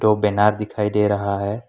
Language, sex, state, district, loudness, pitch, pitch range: Hindi, male, Assam, Kamrup Metropolitan, -20 LUFS, 105 Hz, 100-105 Hz